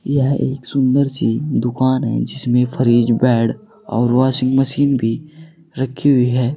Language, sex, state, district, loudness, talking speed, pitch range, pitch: Hindi, male, Uttar Pradesh, Saharanpur, -17 LUFS, 145 wpm, 120-140 Hz, 130 Hz